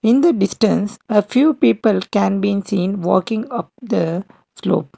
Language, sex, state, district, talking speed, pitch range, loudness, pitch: English, male, Karnataka, Bangalore, 155 wpm, 195-235 Hz, -18 LUFS, 210 Hz